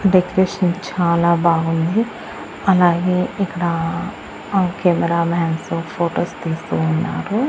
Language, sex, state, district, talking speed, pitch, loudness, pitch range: Telugu, female, Andhra Pradesh, Annamaya, 80 wpm, 170 Hz, -19 LUFS, 165-185 Hz